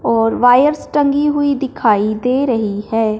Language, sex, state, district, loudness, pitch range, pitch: Hindi, male, Punjab, Fazilka, -15 LUFS, 220-280 Hz, 245 Hz